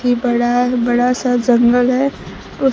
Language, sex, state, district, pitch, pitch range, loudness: Hindi, female, Bihar, Kaimur, 245 Hz, 240-250 Hz, -15 LUFS